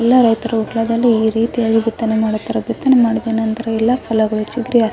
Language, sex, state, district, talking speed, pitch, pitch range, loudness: Kannada, female, Karnataka, Raichur, 145 wpm, 225 Hz, 220-235 Hz, -16 LUFS